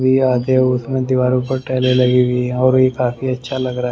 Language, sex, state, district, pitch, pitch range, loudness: Hindi, male, Haryana, Rohtak, 130 Hz, 125-130 Hz, -16 LUFS